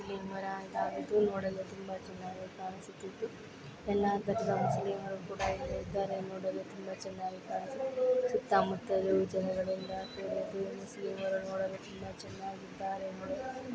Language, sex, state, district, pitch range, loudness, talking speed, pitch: Kannada, female, Karnataka, Dakshina Kannada, 190-200 Hz, -36 LUFS, 115 wpm, 195 Hz